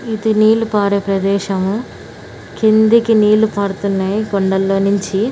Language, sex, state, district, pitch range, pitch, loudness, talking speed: Telugu, female, Andhra Pradesh, Anantapur, 195-220 Hz, 200 Hz, -15 LUFS, 100 wpm